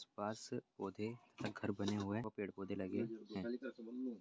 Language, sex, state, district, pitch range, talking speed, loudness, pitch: Hindi, male, Chhattisgarh, Bilaspur, 100-115 Hz, 130 wpm, -45 LUFS, 105 Hz